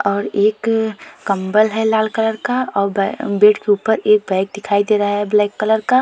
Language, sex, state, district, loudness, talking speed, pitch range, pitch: Hindi, female, Uttar Pradesh, Jalaun, -16 LUFS, 210 wpm, 205-220 Hz, 210 Hz